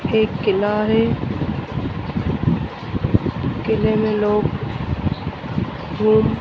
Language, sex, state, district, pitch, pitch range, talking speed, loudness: Hindi, female, Madhya Pradesh, Dhar, 215 Hz, 210-220 Hz, 55 wpm, -20 LUFS